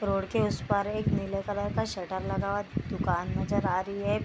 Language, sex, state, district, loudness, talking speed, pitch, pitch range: Hindi, female, Bihar, Vaishali, -30 LUFS, 225 wpm, 200 Hz, 195-205 Hz